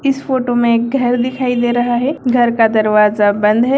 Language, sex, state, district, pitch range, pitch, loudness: Hindi, female, Bihar, Sitamarhi, 225-255 Hz, 240 Hz, -14 LUFS